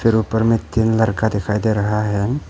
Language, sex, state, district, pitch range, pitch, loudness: Hindi, male, Arunachal Pradesh, Papum Pare, 105-110 Hz, 110 Hz, -18 LUFS